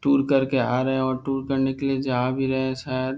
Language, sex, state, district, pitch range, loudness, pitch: Hindi, male, Bihar, Darbhanga, 130-135 Hz, -23 LUFS, 135 Hz